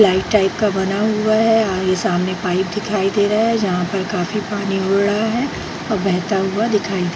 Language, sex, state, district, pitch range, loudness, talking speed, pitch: Hindi, female, Bihar, Jahanabad, 190-215 Hz, -18 LUFS, 225 wpm, 200 Hz